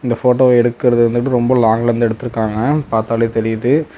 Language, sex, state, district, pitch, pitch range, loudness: Tamil, male, Tamil Nadu, Namakkal, 120 Hz, 115-125 Hz, -15 LUFS